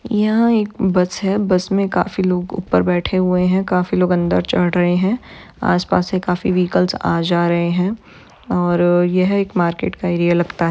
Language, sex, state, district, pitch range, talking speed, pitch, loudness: Hindi, female, Maharashtra, Aurangabad, 175-195 Hz, 185 wpm, 180 Hz, -17 LUFS